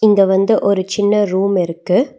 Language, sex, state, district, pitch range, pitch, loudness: Tamil, female, Tamil Nadu, Nilgiris, 190-210 Hz, 200 Hz, -15 LUFS